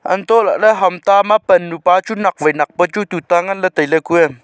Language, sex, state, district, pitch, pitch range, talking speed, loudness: Wancho, male, Arunachal Pradesh, Longding, 180 Hz, 165-200 Hz, 230 wpm, -14 LUFS